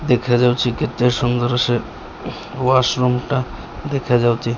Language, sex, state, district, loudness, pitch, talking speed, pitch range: Odia, male, Odisha, Malkangiri, -18 LUFS, 125 Hz, 80 wpm, 120-130 Hz